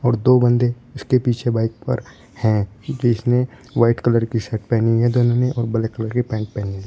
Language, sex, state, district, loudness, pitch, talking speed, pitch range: Hindi, male, Uttar Pradesh, Shamli, -19 LUFS, 120 Hz, 190 wpm, 110-125 Hz